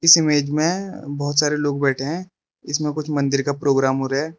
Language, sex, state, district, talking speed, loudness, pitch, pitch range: Hindi, male, Arunachal Pradesh, Lower Dibang Valley, 220 wpm, -20 LUFS, 145 Hz, 140-155 Hz